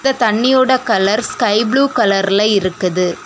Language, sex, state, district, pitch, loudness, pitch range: Tamil, female, Tamil Nadu, Kanyakumari, 215 Hz, -14 LUFS, 195-260 Hz